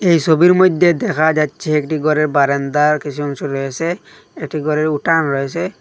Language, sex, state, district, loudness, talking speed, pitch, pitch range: Bengali, male, Assam, Hailakandi, -16 LUFS, 155 wpm, 155 Hz, 145-170 Hz